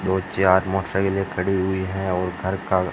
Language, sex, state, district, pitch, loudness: Hindi, male, Rajasthan, Bikaner, 95 Hz, -22 LUFS